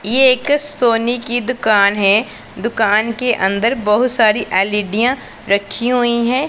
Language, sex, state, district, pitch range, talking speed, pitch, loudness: Hindi, female, Punjab, Pathankot, 210-250 Hz, 140 wpm, 230 Hz, -15 LUFS